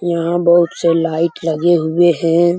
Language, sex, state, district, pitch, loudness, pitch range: Hindi, male, Chhattisgarh, Raigarh, 170 Hz, -14 LUFS, 165-175 Hz